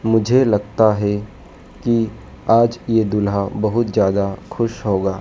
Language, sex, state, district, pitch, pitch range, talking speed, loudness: Hindi, male, Madhya Pradesh, Dhar, 110 Hz, 100-115 Hz, 125 wpm, -18 LUFS